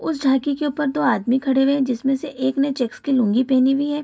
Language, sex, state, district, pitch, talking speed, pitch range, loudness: Hindi, female, Bihar, Kishanganj, 270 Hz, 280 wpm, 260-285 Hz, -20 LUFS